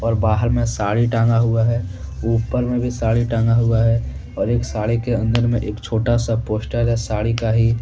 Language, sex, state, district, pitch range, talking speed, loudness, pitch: Hindi, male, Jharkhand, Deoghar, 110-115 Hz, 215 wpm, -19 LUFS, 115 Hz